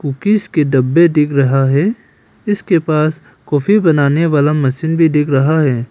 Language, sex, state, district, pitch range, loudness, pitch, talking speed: Hindi, male, Arunachal Pradesh, Papum Pare, 140-165 Hz, -13 LUFS, 150 Hz, 160 wpm